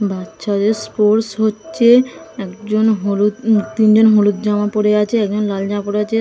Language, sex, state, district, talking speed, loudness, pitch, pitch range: Bengali, female, West Bengal, Dakshin Dinajpur, 155 wpm, -15 LUFS, 210 Hz, 205-220 Hz